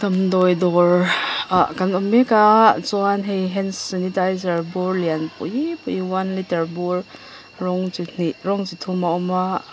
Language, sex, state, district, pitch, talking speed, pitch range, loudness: Mizo, female, Mizoram, Aizawl, 185 Hz, 165 wpm, 180-200 Hz, -20 LUFS